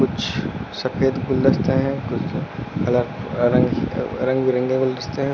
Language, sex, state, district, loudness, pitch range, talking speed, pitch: Hindi, male, Uttar Pradesh, Lucknow, -21 LUFS, 125-135 Hz, 145 wpm, 130 Hz